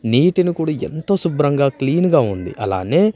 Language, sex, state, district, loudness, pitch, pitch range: Telugu, male, Andhra Pradesh, Manyam, -18 LUFS, 155 Hz, 125-175 Hz